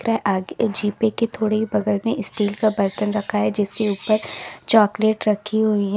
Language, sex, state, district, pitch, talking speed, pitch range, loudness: Hindi, female, Uttar Pradesh, Lalitpur, 210 Hz, 180 wpm, 205-220 Hz, -21 LUFS